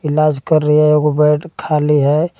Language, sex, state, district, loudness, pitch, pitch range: Hindi, male, Jharkhand, Garhwa, -14 LUFS, 150 Hz, 150-155 Hz